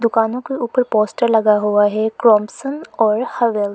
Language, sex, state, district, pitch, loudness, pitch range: Hindi, female, Arunachal Pradesh, Lower Dibang Valley, 225 Hz, -17 LUFS, 215-240 Hz